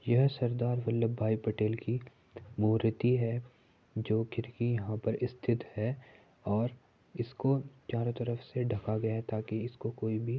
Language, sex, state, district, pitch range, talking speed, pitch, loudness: Hindi, male, Uttar Pradesh, Muzaffarnagar, 110-120 Hz, 145 wpm, 115 Hz, -33 LUFS